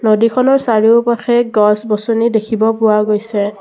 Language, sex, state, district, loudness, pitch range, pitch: Assamese, female, Assam, Kamrup Metropolitan, -13 LUFS, 210-235 Hz, 220 Hz